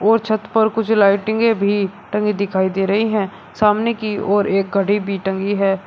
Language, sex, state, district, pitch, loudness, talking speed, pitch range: Hindi, male, Uttar Pradesh, Shamli, 205 Hz, -18 LUFS, 195 wpm, 195-220 Hz